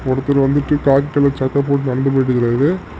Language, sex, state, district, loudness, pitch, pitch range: Tamil, male, Tamil Nadu, Namakkal, -16 LUFS, 135 Hz, 130-140 Hz